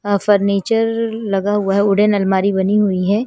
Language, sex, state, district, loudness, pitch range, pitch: Hindi, female, Himachal Pradesh, Shimla, -16 LUFS, 195-210 Hz, 200 Hz